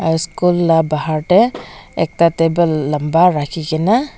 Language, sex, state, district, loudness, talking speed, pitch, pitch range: Nagamese, female, Nagaland, Dimapur, -15 LUFS, 130 wpm, 165 Hz, 155-180 Hz